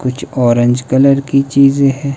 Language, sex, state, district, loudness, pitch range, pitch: Hindi, male, Himachal Pradesh, Shimla, -12 LUFS, 130-140 Hz, 135 Hz